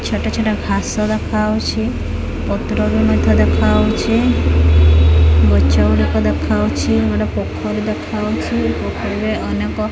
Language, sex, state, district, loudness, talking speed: Odia, female, Odisha, Khordha, -16 LUFS, 115 wpm